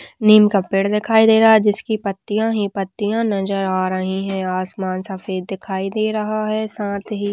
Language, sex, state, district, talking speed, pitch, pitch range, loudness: Hindi, female, Uttarakhand, Tehri Garhwal, 190 wpm, 205 Hz, 190-215 Hz, -18 LUFS